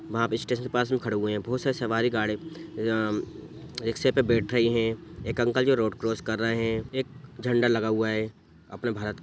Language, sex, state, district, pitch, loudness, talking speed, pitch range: Hindi, male, Bihar, Sitamarhi, 115 Hz, -27 LUFS, 225 wpm, 110-125 Hz